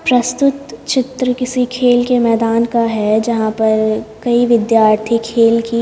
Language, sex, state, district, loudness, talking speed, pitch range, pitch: Hindi, female, Haryana, Jhajjar, -14 LUFS, 145 wpm, 225-250 Hz, 230 Hz